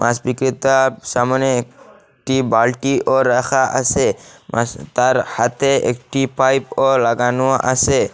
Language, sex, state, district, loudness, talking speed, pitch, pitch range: Bengali, male, Assam, Hailakandi, -16 LUFS, 110 wpm, 130 Hz, 125-135 Hz